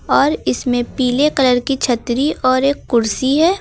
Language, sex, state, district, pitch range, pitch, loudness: Hindi, female, Uttar Pradesh, Lucknow, 245-285 Hz, 260 Hz, -16 LUFS